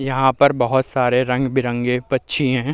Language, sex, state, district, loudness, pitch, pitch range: Hindi, male, Bihar, Vaishali, -18 LUFS, 130 Hz, 125-135 Hz